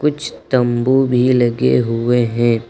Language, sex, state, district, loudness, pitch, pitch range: Hindi, male, Uttar Pradesh, Lucknow, -15 LUFS, 120 Hz, 115-130 Hz